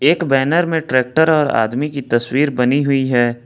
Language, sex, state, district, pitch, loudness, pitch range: Hindi, male, Jharkhand, Ranchi, 135 Hz, -16 LUFS, 125-155 Hz